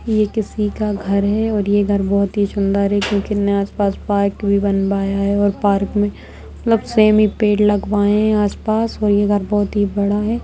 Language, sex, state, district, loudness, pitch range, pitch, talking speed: Hindi, female, Bihar, Samastipur, -17 LUFS, 200-210 Hz, 205 Hz, 220 wpm